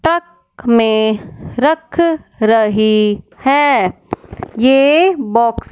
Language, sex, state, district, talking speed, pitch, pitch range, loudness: Hindi, male, Punjab, Fazilka, 85 wpm, 250 Hz, 220-320 Hz, -13 LUFS